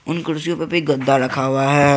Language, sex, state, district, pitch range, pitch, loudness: Hindi, male, Jharkhand, Garhwa, 135-165 Hz, 145 Hz, -18 LUFS